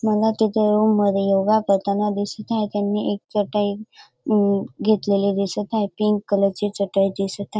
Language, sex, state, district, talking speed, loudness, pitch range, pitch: Marathi, female, Maharashtra, Dhule, 165 wpm, -21 LUFS, 200-215 Hz, 205 Hz